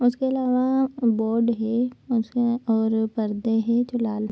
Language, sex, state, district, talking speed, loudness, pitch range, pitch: Hindi, female, Bihar, Kishanganj, 155 wpm, -23 LUFS, 220-250 Hz, 235 Hz